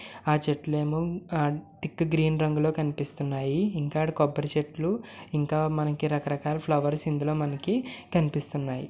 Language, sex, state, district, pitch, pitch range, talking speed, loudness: Telugu, male, Andhra Pradesh, Srikakulam, 150 Hz, 145-160 Hz, 115 wpm, -28 LUFS